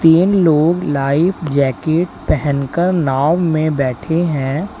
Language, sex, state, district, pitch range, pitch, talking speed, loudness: Hindi, male, Uttar Pradesh, Lalitpur, 140-170 Hz, 160 Hz, 115 wpm, -16 LUFS